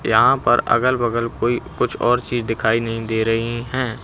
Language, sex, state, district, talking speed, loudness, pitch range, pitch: Hindi, male, Uttar Pradesh, Lucknow, 195 wpm, -18 LUFS, 115-120 Hz, 115 Hz